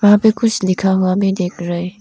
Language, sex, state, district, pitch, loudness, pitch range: Hindi, female, Arunachal Pradesh, Lower Dibang Valley, 190 Hz, -16 LUFS, 185-205 Hz